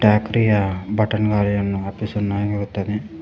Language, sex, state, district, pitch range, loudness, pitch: Kannada, male, Karnataka, Koppal, 100-105 Hz, -21 LUFS, 105 Hz